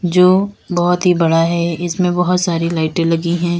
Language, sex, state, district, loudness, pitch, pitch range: Hindi, female, Uttar Pradesh, Lalitpur, -15 LUFS, 175 Hz, 170-180 Hz